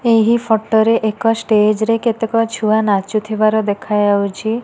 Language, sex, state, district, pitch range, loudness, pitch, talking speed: Odia, female, Odisha, Nuapada, 215-225 Hz, -15 LUFS, 220 Hz, 130 wpm